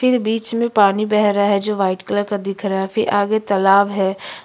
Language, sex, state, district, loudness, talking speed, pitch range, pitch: Hindi, female, Chhattisgarh, Sukma, -17 LUFS, 245 wpm, 195-215 Hz, 205 Hz